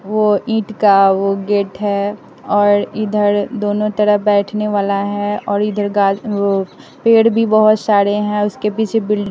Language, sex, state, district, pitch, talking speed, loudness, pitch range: Hindi, female, Bihar, West Champaran, 205 Hz, 155 wpm, -15 LUFS, 200-210 Hz